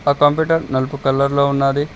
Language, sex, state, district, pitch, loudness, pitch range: Telugu, male, Telangana, Mahabubabad, 140 Hz, -17 LUFS, 140-145 Hz